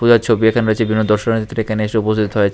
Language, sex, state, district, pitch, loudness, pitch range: Bengali, male, Tripura, West Tripura, 110 Hz, -16 LUFS, 110-115 Hz